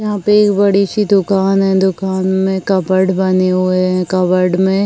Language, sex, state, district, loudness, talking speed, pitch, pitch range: Hindi, female, Uttar Pradesh, Jyotiba Phule Nagar, -13 LUFS, 195 wpm, 190 Hz, 185-200 Hz